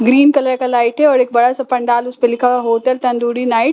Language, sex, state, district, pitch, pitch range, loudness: Hindi, female, Bihar, Katihar, 250 Hz, 240-255 Hz, -14 LUFS